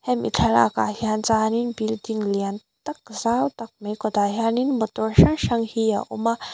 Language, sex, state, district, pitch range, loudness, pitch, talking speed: Mizo, female, Mizoram, Aizawl, 210-230 Hz, -22 LUFS, 220 Hz, 190 wpm